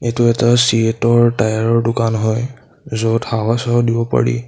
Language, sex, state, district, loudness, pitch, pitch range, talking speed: Assamese, male, Assam, Sonitpur, -15 LUFS, 115 Hz, 110-120 Hz, 160 wpm